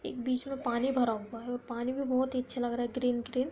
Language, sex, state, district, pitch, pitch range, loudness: Hindi, female, Uttar Pradesh, Budaun, 250 Hz, 240-255 Hz, -33 LUFS